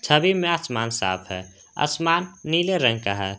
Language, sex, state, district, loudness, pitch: Hindi, male, Jharkhand, Garhwa, -22 LUFS, 135 Hz